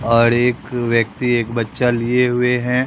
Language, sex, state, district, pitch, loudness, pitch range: Hindi, male, Bihar, Katihar, 120 Hz, -17 LUFS, 115-125 Hz